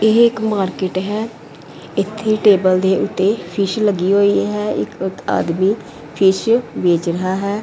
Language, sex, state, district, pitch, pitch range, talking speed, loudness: Punjabi, female, Punjab, Pathankot, 195 Hz, 185-215 Hz, 140 wpm, -17 LUFS